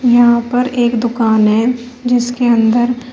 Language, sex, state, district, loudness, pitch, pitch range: Hindi, female, Uttar Pradesh, Shamli, -13 LUFS, 240 Hz, 235-245 Hz